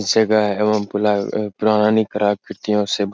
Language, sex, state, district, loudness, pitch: Hindi, male, Bihar, Jahanabad, -18 LUFS, 105 Hz